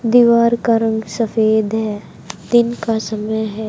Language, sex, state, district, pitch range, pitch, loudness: Hindi, female, Haryana, Charkhi Dadri, 215-235 Hz, 220 Hz, -16 LUFS